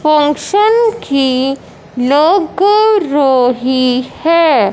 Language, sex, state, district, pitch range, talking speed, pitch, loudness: Hindi, male, Punjab, Fazilka, 260-385 Hz, 65 wpm, 295 Hz, -12 LUFS